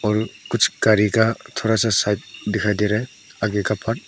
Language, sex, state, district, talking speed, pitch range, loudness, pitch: Hindi, male, Arunachal Pradesh, Papum Pare, 220 wpm, 105-110 Hz, -20 LUFS, 105 Hz